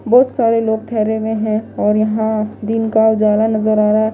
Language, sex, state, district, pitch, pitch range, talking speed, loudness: Hindi, female, Himachal Pradesh, Shimla, 220 Hz, 215-225 Hz, 200 wpm, -15 LUFS